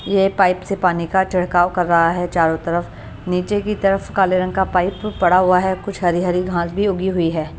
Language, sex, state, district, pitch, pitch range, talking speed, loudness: Hindi, female, Chhattisgarh, Raipur, 180 Hz, 175-190 Hz, 220 wpm, -18 LUFS